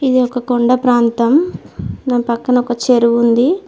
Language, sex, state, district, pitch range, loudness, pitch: Telugu, female, Telangana, Mahabubabad, 235-255 Hz, -14 LUFS, 245 Hz